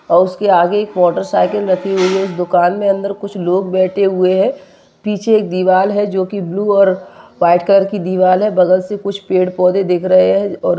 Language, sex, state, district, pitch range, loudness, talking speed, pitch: Hindi, male, West Bengal, Dakshin Dinajpur, 185-200 Hz, -14 LUFS, 205 wpm, 185 Hz